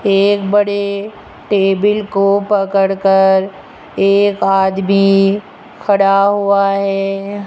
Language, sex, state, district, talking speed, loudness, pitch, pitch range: Hindi, female, Rajasthan, Jaipur, 80 wpm, -13 LUFS, 195 Hz, 195-200 Hz